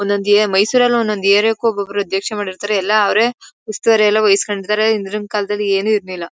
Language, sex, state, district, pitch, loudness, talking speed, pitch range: Kannada, female, Karnataka, Mysore, 205 Hz, -15 LUFS, 150 wpm, 200-215 Hz